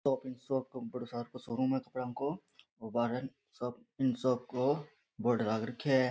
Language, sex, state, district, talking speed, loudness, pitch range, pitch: Rajasthani, male, Rajasthan, Nagaur, 165 wpm, -35 LUFS, 120-130 Hz, 125 Hz